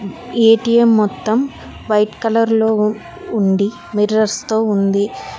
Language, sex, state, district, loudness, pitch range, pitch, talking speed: Telugu, female, Telangana, Hyderabad, -16 LUFS, 200-225 Hz, 215 Hz, 100 wpm